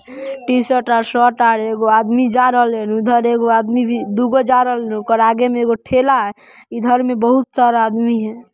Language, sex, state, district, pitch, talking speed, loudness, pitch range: Magahi, female, Bihar, Samastipur, 240 Hz, 190 wpm, -15 LUFS, 230-250 Hz